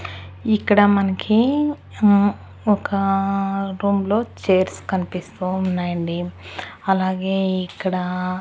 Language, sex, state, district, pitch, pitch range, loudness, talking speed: Telugu, female, Andhra Pradesh, Annamaya, 190 Hz, 185-200 Hz, -20 LUFS, 80 wpm